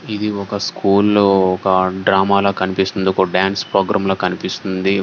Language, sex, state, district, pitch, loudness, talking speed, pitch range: Telugu, male, Karnataka, Gulbarga, 95 Hz, -16 LUFS, 155 wpm, 95-100 Hz